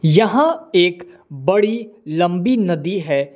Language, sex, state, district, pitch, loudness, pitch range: Hindi, male, Jharkhand, Palamu, 180 Hz, -17 LUFS, 170-215 Hz